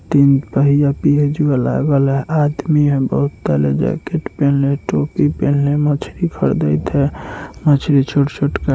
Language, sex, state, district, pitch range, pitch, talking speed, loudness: Hindi, male, Bihar, Muzaffarpur, 135-145 Hz, 140 Hz, 95 wpm, -16 LUFS